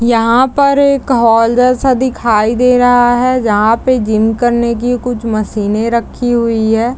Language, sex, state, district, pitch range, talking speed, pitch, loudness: Hindi, female, Bihar, Madhepura, 225-250 Hz, 165 wpm, 235 Hz, -11 LUFS